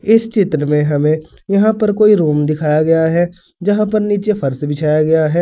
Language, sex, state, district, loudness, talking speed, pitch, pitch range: Hindi, male, Uttar Pradesh, Saharanpur, -14 LUFS, 200 wpm, 165 Hz, 150-205 Hz